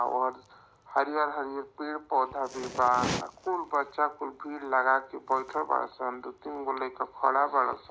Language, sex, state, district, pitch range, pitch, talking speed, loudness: Bhojpuri, male, Uttar Pradesh, Varanasi, 130-150 Hz, 135 Hz, 145 wpm, -30 LUFS